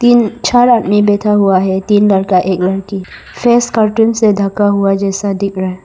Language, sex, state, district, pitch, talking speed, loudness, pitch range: Hindi, female, Arunachal Pradesh, Lower Dibang Valley, 200 Hz, 195 wpm, -12 LUFS, 190-220 Hz